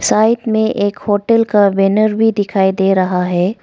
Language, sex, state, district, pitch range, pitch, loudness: Hindi, female, Arunachal Pradesh, Lower Dibang Valley, 195-220 Hz, 205 Hz, -14 LUFS